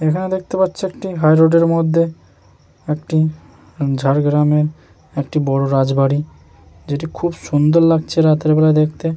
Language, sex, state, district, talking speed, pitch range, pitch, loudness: Bengali, male, West Bengal, Jhargram, 125 wpm, 140-165 Hz, 155 Hz, -16 LUFS